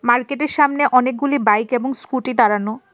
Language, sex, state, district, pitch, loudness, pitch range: Bengali, female, Tripura, West Tripura, 260 Hz, -17 LUFS, 240-285 Hz